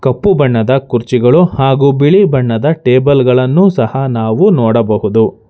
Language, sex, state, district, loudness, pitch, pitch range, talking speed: Kannada, male, Karnataka, Bangalore, -10 LUFS, 130 Hz, 115-145 Hz, 120 wpm